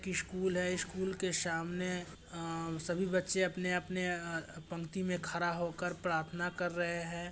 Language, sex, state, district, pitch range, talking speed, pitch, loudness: Hindi, male, Bihar, Gopalganj, 170-180 Hz, 170 wpm, 175 Hz, -36 LUFS